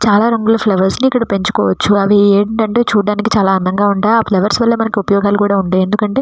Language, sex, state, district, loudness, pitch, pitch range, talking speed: Telugu, female, Andhra Pradesh, Srikakulam, -13 LUFS, 205 Hz, 200-225 Hz, 185 wpm